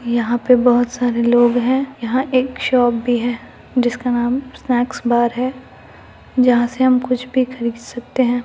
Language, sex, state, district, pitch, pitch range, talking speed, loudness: Hindi, female, Bihar, Muzaffarpur, 245 Hz, 240-255 Hz, 180 wpm, -17 LUFS